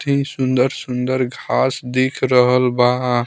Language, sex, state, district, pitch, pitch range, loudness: Bhojpuri, male, Bihar, Muzaffarpur, 130 Hz, 125-130 Hz, -17 LUFS